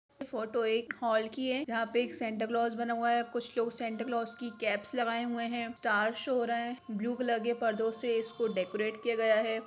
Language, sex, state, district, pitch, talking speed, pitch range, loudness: Hindi, female, Jharkhand, Sahebganj, 235 Hz, 230 wpm, 225-240 Hz, -33 LUFS